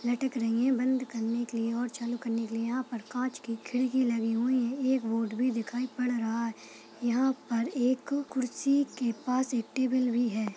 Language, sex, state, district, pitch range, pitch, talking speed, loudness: Hindi, female, Chhattisgarh, Balrampur, 230-255 Hz, 245 Hz, 210 wpm, -30 LUFS